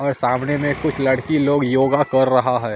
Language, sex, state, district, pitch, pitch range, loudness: Hindi, male, Bihar, Katihar, 135 Hz, 130-145 Hz, -18 LUFS